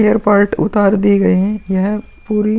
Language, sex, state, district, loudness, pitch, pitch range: Hindi, male, Uttar Pradesh, Muzaffarnagar, -14 LUFS, 205 Hz, 200-210 Hz